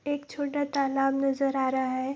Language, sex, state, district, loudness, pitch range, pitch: Hindi, female, Bihar, Saharsa, -28 LUFS, 265-285 Hz, 275 Hz